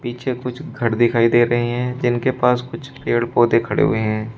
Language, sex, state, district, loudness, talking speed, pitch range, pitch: Hindi, male, Uttar Pradesh, Shamli, -19 LUFS, 205 wpm, 115-125 Hz, 120 Hz